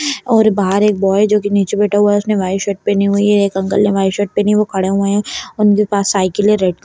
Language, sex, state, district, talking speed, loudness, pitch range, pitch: Kumaoni, female, Uttarakhand, Tehri Garhwal, 295 wpm, -14 LUFS, 195-210 Hz, 205 Hz